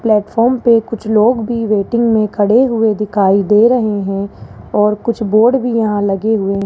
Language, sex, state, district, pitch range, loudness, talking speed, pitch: Hindi, male, Rajasthan, Jaipur, 205-235 Hz, -13 LUFS, 180 wpm, 215 Hz